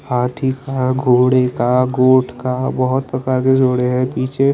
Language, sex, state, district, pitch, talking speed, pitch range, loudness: Hindi, male, Chandigarh, Chandigarh, 130 Hz, 170 wpm, 125-130 Hz, -16 LUFS